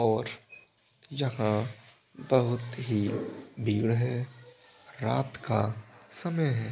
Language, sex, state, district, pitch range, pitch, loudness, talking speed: Hindi, male, Bihar, Begusarai, 110-125 Hz, 120 Hz, -30 LUFS, 90 wpm